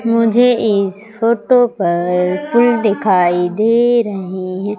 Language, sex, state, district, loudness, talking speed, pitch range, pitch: Hindi, female, Madhya Pradesh, Umaria, -14 LUFS, 115 wpm, 185-235 Hz, 215 Hz